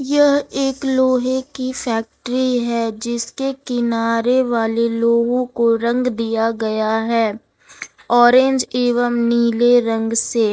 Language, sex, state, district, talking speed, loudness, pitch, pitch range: Hindi, female, Jharkhand, Ranchi, 115 wpm, -17 LUFS, 235 Hz, 230-255 Hz